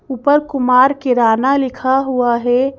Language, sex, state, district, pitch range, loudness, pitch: Hindi, female, Madhya Pradesh, Bhopal, 250-270 Hz, -14 LUFS, 260 Hz